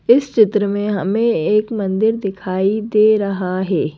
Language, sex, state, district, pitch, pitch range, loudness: Hindi, female, Madhya Pradesh, Bhopal, 210 Hz, 195-220 Hz, -17 LUFS